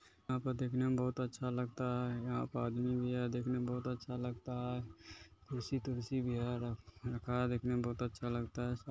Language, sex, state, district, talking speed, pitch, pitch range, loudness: Hindi, male, Bihar, Kishanganj, 200 wpm, 125 Hz, 120-125 Hz, -39 LUFS